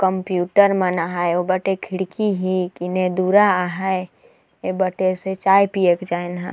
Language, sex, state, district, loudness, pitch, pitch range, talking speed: Sadri, female, Chhattisgarh, Jashpur, -19 LUFS, 185 Hz, 180-190 Hz, 165 wpm